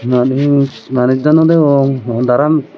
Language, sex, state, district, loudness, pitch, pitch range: Chakma, male, Tripura, Dhalai, -12 LUFS, 135 Hz, 125-150 Hz